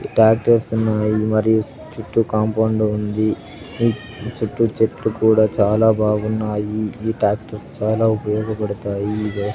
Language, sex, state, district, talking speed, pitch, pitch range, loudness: Telugu, male, Andhra Pradesh, Sri Satya Sai, 115 wpm, 110 Hz, 105-110 Hz, -19 LUFS